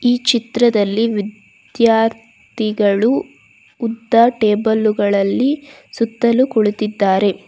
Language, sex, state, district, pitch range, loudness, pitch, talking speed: Kannada, female, Karnataka, Bangalore, 210-240 Hz, -16 LUFS, 225 Hz, 65 wpm